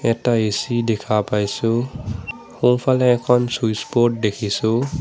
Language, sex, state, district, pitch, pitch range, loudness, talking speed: Assamese, male, Assam, Sonitpur, 115 Hz, 110-125 Hz, -19 LUFS, 95 wpm